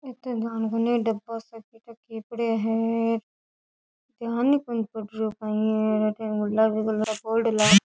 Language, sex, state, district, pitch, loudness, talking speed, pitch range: Rajasthani, female, Rajasthan, Churu, 225 Hz, -25 LUFS, 145 wpm, 220-230 Hz